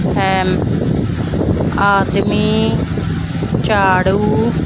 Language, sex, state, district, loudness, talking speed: Punjabi, female, Punjab, Fazilka, -15 LUFS, 50 wpm